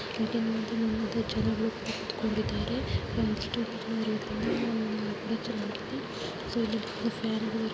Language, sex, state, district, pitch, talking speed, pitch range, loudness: Kannada, female, Karnataka, Chamarajanagar, 225 Hz, 110 wpm, 220-225 Hz, -32 LUFS